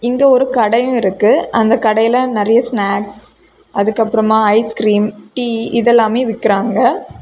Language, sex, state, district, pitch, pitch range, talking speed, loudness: Tamil, female, Tamil Nadu, Kanyakumari, 225 Hz, 210-240 Hz, 125 wpm, -14 LUFS